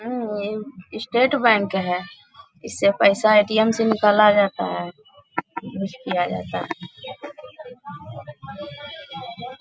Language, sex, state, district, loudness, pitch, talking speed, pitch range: Hindi, female, Bihar, Bhagalpur, -20 LUFS, 210 Hz, 100 wpm, 185-240 Hz